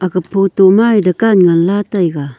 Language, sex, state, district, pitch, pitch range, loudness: Wancho, female, Arunachal Pradesh, Longding, 190 Hz, 180-205 Hz, -11 LUFS